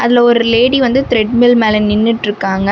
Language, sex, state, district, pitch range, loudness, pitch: Tamil, female, Tamil Nadu, Namakkal, 210-245 Hz, -11 LUFS, 230 Hz